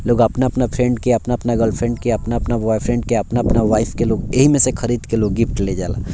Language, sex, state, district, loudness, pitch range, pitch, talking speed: Bhojpuri, male, Bihar, Muzaffarpur, -18 LUFS, 110-120 Hz, 120 Hz, 205 wpm